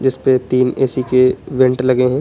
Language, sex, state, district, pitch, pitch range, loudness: Hindi, male, Uttar Pradesh, Budaun, 130 Hz, 125-130 Hz, -15 LUFS